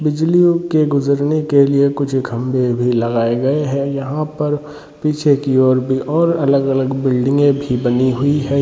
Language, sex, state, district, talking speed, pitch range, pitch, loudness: Hindi, male, Jharkhand, Sahebganj, 180 wpm, 130-150 Hz, 140 Hz, -16 LUFS